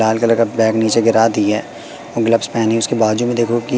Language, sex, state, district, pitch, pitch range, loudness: Hindi, male, Madhya Pradesh, Katni, 115 Hz, 110-115 Hz, -15 LUFS